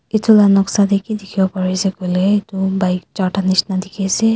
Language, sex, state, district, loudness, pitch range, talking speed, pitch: Nagamese, female, Nagaland, Kohima, -16 LUFS, 185-205 Hz, 180 wpm, 195 Hz